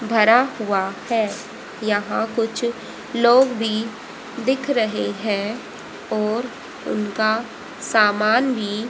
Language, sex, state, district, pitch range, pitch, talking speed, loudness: Hindi, female, Haryana, Rohtak, 210-235 Hz, 225 Hz, 95 wpm, -20 LUFS